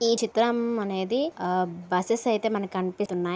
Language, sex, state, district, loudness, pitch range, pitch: Telugu, female, Andhra Pradesh, Anantapur, -26 LUFS, 185-230 Hz, 210 Hz